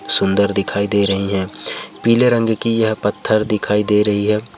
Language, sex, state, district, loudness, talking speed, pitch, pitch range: Hindi, male, Andhra Pradesh, Chittoor, -16 LUFS, 185 wpm, 105 Hz, 100-110 Hz